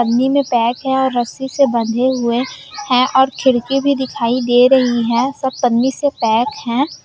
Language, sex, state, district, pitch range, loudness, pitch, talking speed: Hindi, female, Bihar, Kishanganj, 240-265 Hz, -15 LUFS, 255 Hz, 185 wpm